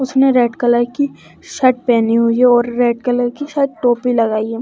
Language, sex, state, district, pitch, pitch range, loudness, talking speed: Hindi, female, Haryana, Charkhi Dadri, 245 Hz, 235-265 Hz, -15 LUFS, 210 wpm